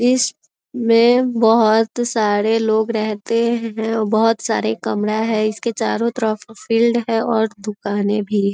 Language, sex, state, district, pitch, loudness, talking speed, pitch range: Hindi, female, Bihar, East Champaran, 225 Hz, -18 LUFS, 125 wpm, 215-230 Hz